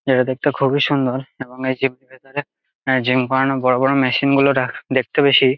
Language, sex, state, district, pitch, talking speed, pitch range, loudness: Bengali, male, West Bengal, Jalpaiguri, 130 Hz, 170 wpm, 130-140 Hz, -18 LUFS